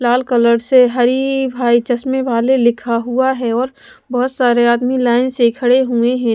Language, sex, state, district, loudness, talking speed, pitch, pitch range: Hindi, female, Punjab, Pathankot, -14 LUFS, 180 wpm, 245 Hz, 240-260 Hz